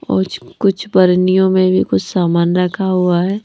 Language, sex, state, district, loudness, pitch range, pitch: Hindi, female, Punjab, Pathankot, -14 LUFS, 175-190 Hz, 180 Hz